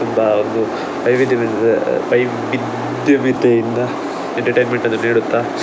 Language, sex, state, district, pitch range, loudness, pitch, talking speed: Kannada, male, Karnataka, Dakshina Kannada, 115-125 Hz, -16 LUFS, 115 Hz, 75 wpm